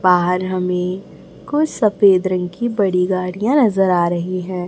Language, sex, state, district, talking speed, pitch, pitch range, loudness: Hindi, male, Chhattisgarh, Raipur, 155 wpm, 185 Hz, 180-205 Hz, -17 LUFS